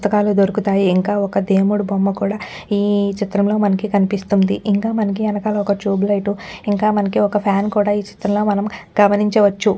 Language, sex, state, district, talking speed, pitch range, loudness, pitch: Telugu, female, Telangana, Nalgonda, 160 wpm, 200-210 Hz, -17 LUFS, 205 Hz